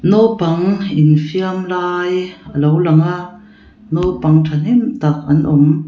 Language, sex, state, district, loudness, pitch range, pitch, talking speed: Mizo, female, Mizoram, Aizawl, -14 LUFS, 150-185 Hz, 175 Hz, 100 wpm